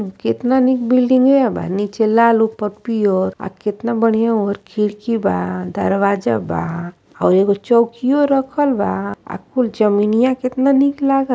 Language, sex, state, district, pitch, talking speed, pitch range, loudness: Bhojpuri, female, Uttar Pradesh, Ghazipur, 225 Hz, 150 wpm, 200-255 Hz, -16 LUFS